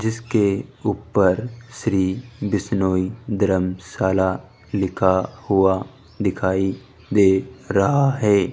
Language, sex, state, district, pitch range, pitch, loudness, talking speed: Hindi, male, Rajasthan, Jaipur, 95-115 Hz, 100 Hz, -21 LUFS, 75 wpm